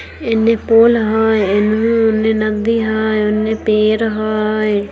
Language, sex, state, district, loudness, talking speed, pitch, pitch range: Maithili, female, Bihar, Samastipur, -14 LUFS, 110 wpm, 220 Hz, 215-225 Hz